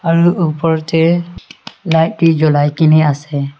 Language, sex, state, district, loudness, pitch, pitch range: Nagamese, female, Nagaland, Kohima, -13 LUFS, 165 Hz, 155-170 Hz